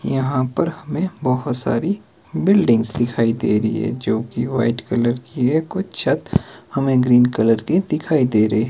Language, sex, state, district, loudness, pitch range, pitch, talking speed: Hindi, male, Himachal Pradesh, Shimla, -19 LUFS, 115-155 Hz, 125 Hz, 170 wpm